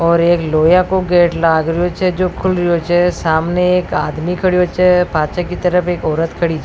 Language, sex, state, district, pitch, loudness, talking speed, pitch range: Rajasthani, female, Rajasthan, Nagaur, 175 Hz, -14 LUFS, 215 wpm, 165-180 Hz